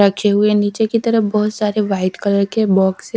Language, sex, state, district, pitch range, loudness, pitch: Hindi, female, Haryana, Charkhi Dadri, 200-220 Hz, -16 LUFS, 210 Hz